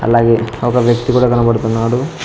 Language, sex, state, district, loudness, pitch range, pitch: Telugu, male, Telangana, Mahabubabad, -13 LUFS, 115-125 Hz, 120 Hz